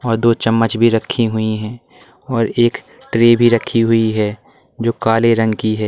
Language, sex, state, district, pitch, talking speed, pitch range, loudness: Hindi, male, Uttar Pradesh, Lalitpur, 115 Hz, 195 wpm, 110-115 Hz, -15 LUFS